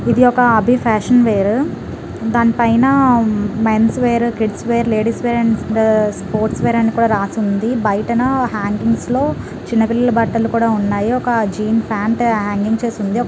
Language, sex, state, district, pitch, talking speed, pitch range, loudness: Telugu, female, Telangana, Nalgonda, 230 Hz, 145 wpm, 215-235 Hz, -15 LUFS